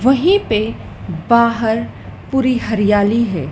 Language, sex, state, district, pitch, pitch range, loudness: Hindi, female, Madhya Pradesh, Dhar, 230 Hz, 215-255 Hz, -15 LUFS